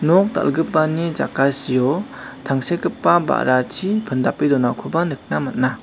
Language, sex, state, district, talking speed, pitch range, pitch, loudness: Garo, male, Meghalaya, South Garo Hills, 95 wpm, 130-170 Hz, 140 Hz, -19 LUFS